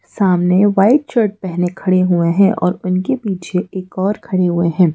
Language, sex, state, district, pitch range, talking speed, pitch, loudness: Hindi, female, Madhya Pradesh, Bhopal, 180-200 Hz, 180 wpm, 185 Hz, -15 LUFS